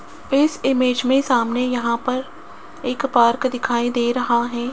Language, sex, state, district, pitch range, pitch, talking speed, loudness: Hindi, female, Rajasthan, Jaipur, 240-260 Hz, 250 Hz, 150 wpm, -19 LUFS